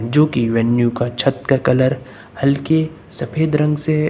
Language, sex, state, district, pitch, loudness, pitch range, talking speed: Hindi, male, Uttar Pradesh, Lucknow, 135 Hz, -17 LUFS, 120-150 Hz, 160 wpm